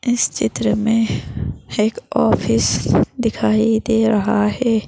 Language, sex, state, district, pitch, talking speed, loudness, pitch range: Hindi, female, Madhya Pradesh, Bhopal, 220 Hz, 110 wpm, -18 LUFS, 210-225 Hz